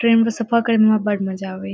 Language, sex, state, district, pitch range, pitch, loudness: Maithili, female, Bihar, Saharsa, 195-230 Hz, 215 Hz, -18 LUFS